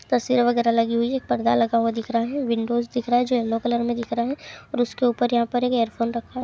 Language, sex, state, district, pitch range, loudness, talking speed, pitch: Hindi, female, Uttar Pradesh, Etah, 230-245 Hz, -23 LUFS, 270 wpm, 235 Hz